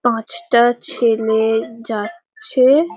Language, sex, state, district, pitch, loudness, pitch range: Bengali, female, West Bengal, Paschim Medinipur, 235 Hz, -17 LUFS, 225-265 Hz